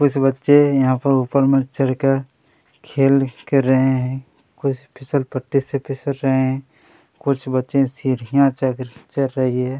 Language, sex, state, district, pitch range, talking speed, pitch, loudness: Hindi, male, Chhattisgarh, Kabirdham, 130-140 Hz, 155 wpm, 135 Hz, -19 LUFS